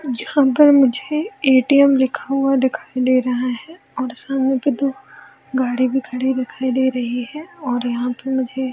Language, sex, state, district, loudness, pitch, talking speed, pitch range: Hindi, female, Bihar, Jamui, -18 LUFS, 260 Hz, 180 wpm, 255-275 Hz